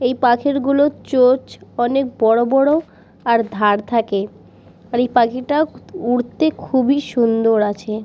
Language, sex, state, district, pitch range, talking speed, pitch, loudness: Bengali, female, West Bengal, Purulia, 225-275 Hz, 125 wpm, 245 Hz, -17 LUFS